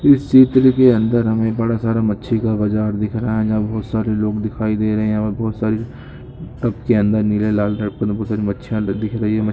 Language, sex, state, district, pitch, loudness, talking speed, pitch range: Hindi, male, Andhra Pradesh, Guntur, 110 Hz, -17 LUFS, 185 wpm, 105-115 Hz